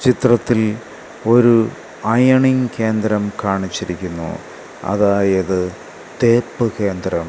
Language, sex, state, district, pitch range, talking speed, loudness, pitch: Malayalam, male, Kerala, Kasaragod, 95-120 Hz, 65 wpm, -17 LUFS, 110 Hz